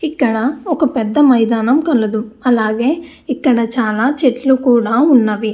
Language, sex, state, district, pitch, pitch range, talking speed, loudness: Telugu, female, Andhra Pradesh, Anantapur, 250 Hz, 225-280 Hz, 120 wpm, -14 LUFS